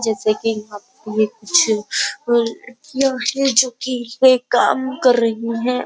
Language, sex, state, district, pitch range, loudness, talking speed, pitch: Hindi, female, Uttar Pradesh, Jyotiba Phule Nagar, 225-260 Hz, -17 LUFS, 155 wpm, 240 Hz